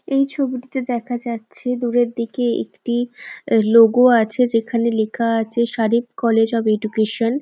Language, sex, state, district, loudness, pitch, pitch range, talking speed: Bengali, female, West Bengal, Jalpaiguri, -18 LUFS, 235 Hz, 225-245 Hz, 135 wpm